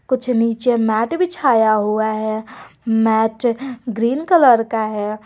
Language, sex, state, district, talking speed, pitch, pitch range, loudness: Hindi, female, Jharkhand, Garhwa, 125 wpm, 230 Hz, 220-250 Hz, -17 LUFS